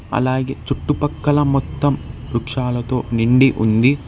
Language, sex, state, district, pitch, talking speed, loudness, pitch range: Telugu, male, Telangana, Hyderabad, 130 Hz, 90 wpm, -18 LUFS, 120-140 Hz